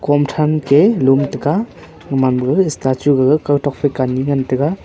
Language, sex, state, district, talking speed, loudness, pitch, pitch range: Wancho, male, Arunachal Pradesh, Longding, 175 wpm, -15 LUFS, 145 Hz, 135-150 Hz